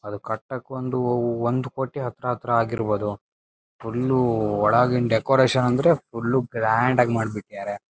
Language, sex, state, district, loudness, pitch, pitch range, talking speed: Kannada, male, Karnataka, Shimoga, -23 LUFS, 120 Hz, 110-130 Hz, 120 wpm